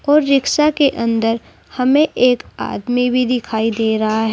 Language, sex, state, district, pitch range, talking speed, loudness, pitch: Hindi, female, Uttar Pradesh, Saharanpur, 225-280 Hz, 165 wpm, -16 LUFS, 250 Hz